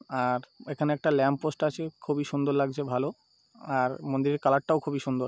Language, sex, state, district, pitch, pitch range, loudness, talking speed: Bengali, male, West Bengal, North 24 Parganas, 145 Hz, 135-150 Hz, -28 LUFS, 180 wpm